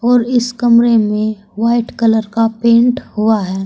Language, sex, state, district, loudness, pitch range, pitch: Hindi, female, Uttar Pradesh, Saharanpur, -13 LUFS, 215-235 Hz, 230 Hz